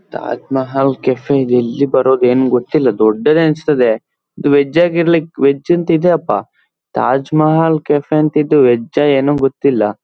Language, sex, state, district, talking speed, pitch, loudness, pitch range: Kannada, male, Karnataka, Dakshina Kannada, 145 wpm, 140 Hz, -13 LUFS, 125-155 Hz